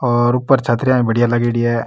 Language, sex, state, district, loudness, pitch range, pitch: Rajasthani, male, Rajasthan, Nagaur, -15 LUFS, 120-125 Hz, 120 Hz